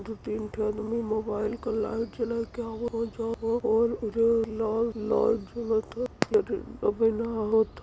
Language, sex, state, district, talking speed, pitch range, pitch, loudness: Hindi, female, Uttar Pradesh, Varanasi, 105 wpm, 220-230 Hz, 225 Hz, -28 LUFS